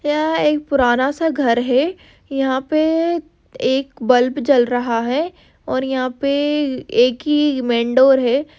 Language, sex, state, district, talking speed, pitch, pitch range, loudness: Hindi, female, Andhra Pradesh, Chittoor, 145 wpm, 270 Hz, 250-295 Hz, -17 LUFS